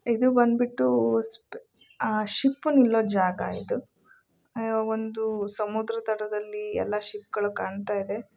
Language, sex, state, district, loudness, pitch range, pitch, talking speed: Kannada, female, Karnataka, Shimoga, -26 LUFS, 205-230 Hz, 215 Hz, 95 wpm